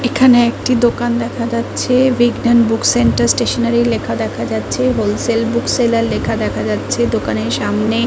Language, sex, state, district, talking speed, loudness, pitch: Bengali, female, West Bengal, Kolkata, 140 wpm, -15 LUFS, 235 Hz